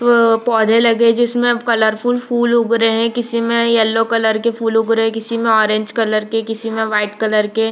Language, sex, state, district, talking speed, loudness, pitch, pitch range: Hindi, female, Jharkhand, Jamtara, 235 wpm, -15 LUFS, 225 Hz, 220-235 Hz